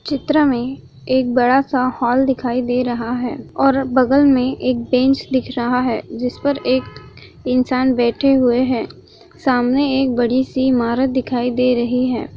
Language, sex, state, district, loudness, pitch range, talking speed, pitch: Hindi, female, Maharashtra, Chandrapur, -17 LUFS, 245-265 Hz, 160 wpm, 255 Hz